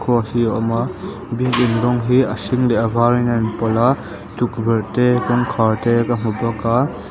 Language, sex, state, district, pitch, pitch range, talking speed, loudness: Mizo, male, Mizoram, Aizawl, 120 Hz, 115-120 Hz, 200 wpm, -18 LUFS